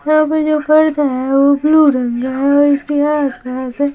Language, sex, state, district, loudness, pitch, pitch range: Hindi, female, Bihar, Patna, -14 LUFS, 285 Hz, 265-305 Hz